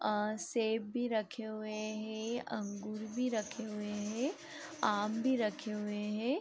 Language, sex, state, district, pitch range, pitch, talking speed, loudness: Hindi, female, Bihar, East Champaran, 210-240 Hz, 220 Hz, 150 wpm, -37 LUFS